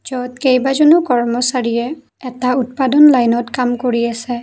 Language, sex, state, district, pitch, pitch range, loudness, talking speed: Assamese, female, Assam, Kamrup Metropolitan, 250 Hz, 240-265 Hz, -14 LUFS, 120 wpm